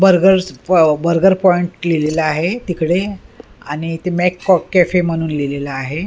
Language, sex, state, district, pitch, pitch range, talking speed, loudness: Marathi, female, Maharashtra, Mumbai Suburban, 175 Hz, 155-185 Hz, 130 wpm, -15 LUFS